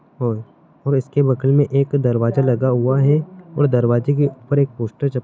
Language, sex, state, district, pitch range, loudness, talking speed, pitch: Hindi, male, Karnataka, Belgaum, 125-145 Hz, -18 LUFS, 205 wpm, 135 Hz